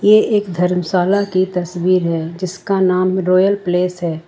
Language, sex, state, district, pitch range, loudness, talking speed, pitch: Hindi, female, Jharkhand, Ranchi, 180-190 Hz, -16 LUFS, 155 wpm, 185 Hz